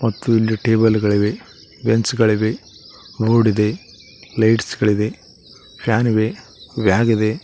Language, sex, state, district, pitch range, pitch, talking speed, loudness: Kannada, male, Karnataka, Koppal, 105-115 Hz, 110 Hz, 105 wpm, -18 LUFS